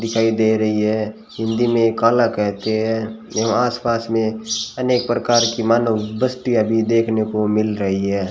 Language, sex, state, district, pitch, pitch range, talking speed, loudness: Hindi, male, Rajasthan, Bikaner, 115 Hz, 110-115 Hz, 165 wpm, -19 LUFS